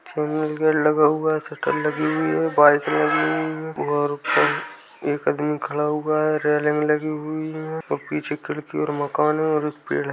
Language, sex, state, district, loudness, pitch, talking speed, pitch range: Hindi, male, Rajasthan, Nagaur, -22 LUFS, 150 Hz, 195 wpm, 145-155 Hz